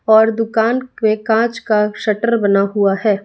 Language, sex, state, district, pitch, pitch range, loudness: Hindi, female, Bihar, West Champaran, 220 Hz, 210-225 Hz, -16 LUFS